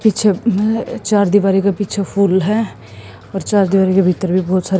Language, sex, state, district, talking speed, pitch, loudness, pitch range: Hindi, female, Haryana, Jhajjar, 185 wpm, 195 Hz, -15 LUFS, 185-210 Hz